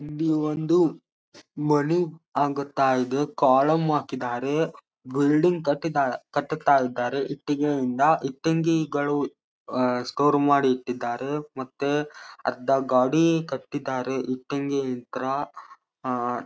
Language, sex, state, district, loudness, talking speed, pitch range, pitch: Kannada, male, Karnataka, Dharwad, -24 LUFS, 85 wpm, 130-150 Hz, 140 Hz